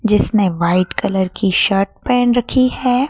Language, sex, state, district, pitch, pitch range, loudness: Hindi, female, Madhya Pradesh, Dhar, 205 Hz, 190-245 Hz, -16 LUFS